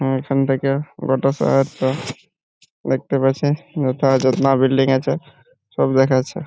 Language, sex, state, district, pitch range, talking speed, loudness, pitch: Bengali, male, West Bengal, Purulia, 130-135 Hz, 120 wpm, -18 LUFS, 135 Hz